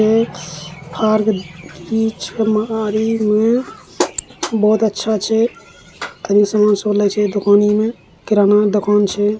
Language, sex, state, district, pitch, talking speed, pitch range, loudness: Hindi, male, Bihar, Araria, 210 Hz, 30 wpm, 205-220 Hz, -16 LUFS